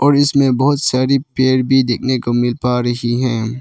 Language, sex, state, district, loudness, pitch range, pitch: Hindi, male, Arunachal Pradesh, Lower Dibang Valley, -15 LUFS, 120-135 Hz, 130 Hz